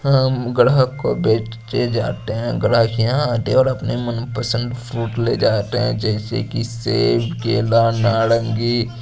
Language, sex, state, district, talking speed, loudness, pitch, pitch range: Hindi, male, Chandigarh, Chandigarh, 155 wpm, -18 LUFS, 115 Hz, 115-125 Hz